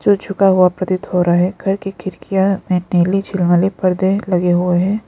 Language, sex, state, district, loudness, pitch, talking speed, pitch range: Hindi, female, Arunachal Pradesh, Lower Dibang Valley, -16 LUFS, 185 Hz, 200 wpm, 180-195 Hz